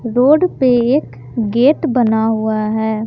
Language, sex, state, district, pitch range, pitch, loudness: Hindi, female, Jharkhand, Palamu, 220-260 Hz, 235 Hz, -14 LUFS